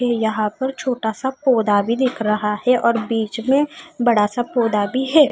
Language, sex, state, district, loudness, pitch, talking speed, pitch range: Hindi, female, Haryana, Charkhi Dadri, -19 LUFS, 235 Hz, 205 wpm, 220-260 Hz